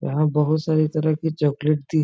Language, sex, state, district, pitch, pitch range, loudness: Hindi, male, Bihar, Supaul, 155 Hz, 150-155 Hz, -21 LUFS